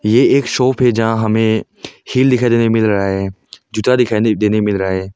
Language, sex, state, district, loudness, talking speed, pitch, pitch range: Hindi, male, Arunachal Pradesh, Longding, -14 LUFS, 230 wpm, 110 Hz, 105-125 Hz